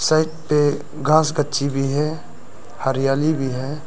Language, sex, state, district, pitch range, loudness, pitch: Hindi, male, Arunachal Pradesh, Lower Dibang Valley, 135-155 Hz, -20 LUFS, 150 Hz